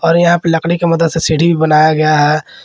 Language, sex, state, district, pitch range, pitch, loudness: Hindi, male, Jharkhand, Ranchi, 155-170 Hz, 165 Hz, -12 LUFS